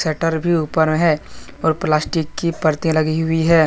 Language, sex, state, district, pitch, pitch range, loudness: Hindi, male, Jharkhand, Deoghar, 160 Hz, 155-165 Hz, -18 LUFS